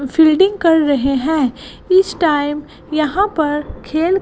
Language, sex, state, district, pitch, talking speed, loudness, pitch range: Hindi, female, Gujarat, Gandhinagar, 310 Hz, 140 wpm, -15 LUFS, 290-345 Hz